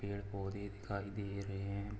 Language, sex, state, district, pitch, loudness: Hindi, male, Jharkhand, Sahebganj, 100 Hz, -43 LUFS